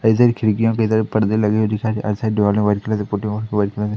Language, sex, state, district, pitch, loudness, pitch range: Hindi, male, Madhya Pradesh, Katni, 105 Hz, -18 LUFS, 105-110 Hz